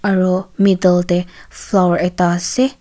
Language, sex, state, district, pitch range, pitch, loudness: Nagamese, female, Nagaland, Kohima, 180-195 Hz, 185 Hz, -16 LUFS